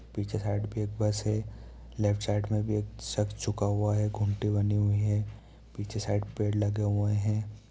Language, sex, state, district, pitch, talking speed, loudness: Hindi, male, Bihar, East Champaran, 105 Hz, 180 wpm, -30 LUFS